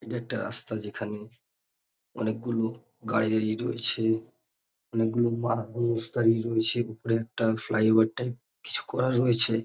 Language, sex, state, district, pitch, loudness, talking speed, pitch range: Bengali, male, West Bengal, North 24 Parganas, 115 Hz, -27 LUFS, 135 wpm, 110-120 Hz